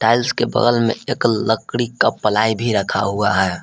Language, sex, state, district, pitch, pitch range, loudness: Hindi, male, Jharkhand, Palamu, 110 Hz, 105-120 Hz, -18 LUFS